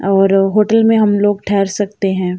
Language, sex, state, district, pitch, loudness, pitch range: Hindi, female, Uttar Pradesh, Jalaun, 200 Hz, -13 LUFS, 195-210 Hz